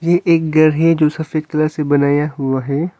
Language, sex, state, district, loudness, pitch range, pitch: Hindi, male, Arunachal Pradesh, Longding, -15 LUFS, 145-165 Hz, 155 Hz